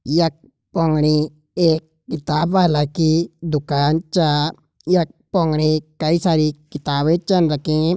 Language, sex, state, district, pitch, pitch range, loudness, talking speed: Garhwali, male, Uttarakhand, Uttarkashi, 160 Hz, 150-170 Hz, -19 LUFS, 115 wpm